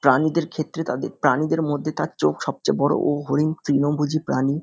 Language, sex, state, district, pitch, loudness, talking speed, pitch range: Bengali, male, West Bengal, North 24 Parganas, 150 Hz, -22 LUFS, 180 wpm, 140-155 Hz